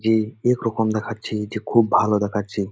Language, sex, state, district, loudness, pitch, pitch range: Bengali, male, West Bengal, Jalpaiguri, -21 LUFS, 110 Hz, 105-115 Hz